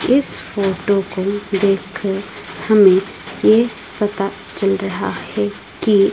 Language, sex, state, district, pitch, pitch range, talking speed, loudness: Hindi, female, Odisha, Malkangiri, 195 Hz, 190-205 Hz, 110 wpm, -18 LUFS